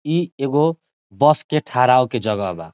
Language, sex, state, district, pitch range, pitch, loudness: Bhojpuri, male, Bihar, Saran, 120-155 Hz, 140 Hz, -18 LUFS